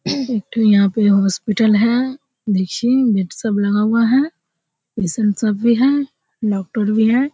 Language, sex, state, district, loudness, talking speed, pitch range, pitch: Hindi, female, Bihar, Kishanganj, -17 LUFS, 145 wpm, 205-245 Hz, 220 Hz